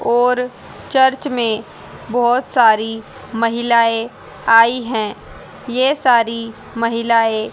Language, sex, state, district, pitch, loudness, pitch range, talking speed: Hindi, female, Haryana, Rohtak, 230 Hz, -16 LUFS, 225-245 Hz, 90 wpm